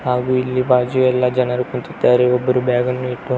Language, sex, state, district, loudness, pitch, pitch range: Kannada, male, Karnataka, Belgaum, -17 LUFS, 125 Hz, 125-130 Hz